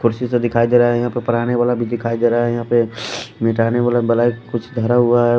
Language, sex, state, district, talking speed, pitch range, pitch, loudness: Hindi, male, Delhi, New Delhi, 265 wpm, 115-120 Hz, 120 Hz, -17 LUFS